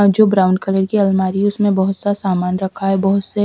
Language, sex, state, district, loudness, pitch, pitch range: Hindi, female, Punjab, Kapurthala, -16 LUFS, 195 Hz, 190-205 Hz